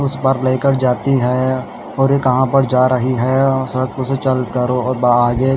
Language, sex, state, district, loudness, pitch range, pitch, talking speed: Hindi, male, Haryana, Charkhi Dadri, -15 LUFS, 125-135 Hz, 130 Hz, 215 wpm